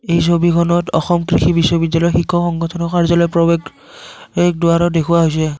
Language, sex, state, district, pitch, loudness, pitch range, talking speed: Assamese, male, Assam, Kamrup Metropolitan, 170 Hz, -15 LUFS, 165-175 Hz, 140 wpm